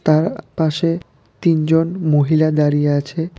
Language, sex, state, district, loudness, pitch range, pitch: Bengali, male, Tripura, West Tripura, -17 LUFS, 145-165 Hz, 155 Hz